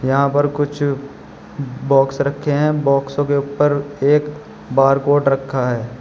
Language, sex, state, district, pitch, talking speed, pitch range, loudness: Hindi, male, Uttar Pradesh, Shamli, 140 Hz, 130 wpm, 135-145 Hz, -17 LUFS